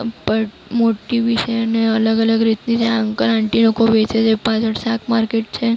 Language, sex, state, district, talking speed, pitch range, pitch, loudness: Gujarati, female, Maharashtra, Mumbai Suburban, 175 wpm, 225-230 Hz, 225 Hz, -17 LUFS